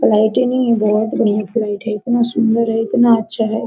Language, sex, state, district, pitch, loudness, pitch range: Hindi, female, Bihar, Araria, 225 Hz, -16 LUFS, 215-235 Hz